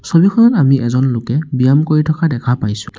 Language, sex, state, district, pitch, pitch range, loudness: Assamese, male, Assam, Sonitpur, 135 Hz, 125-155 Hz, -13 LUFS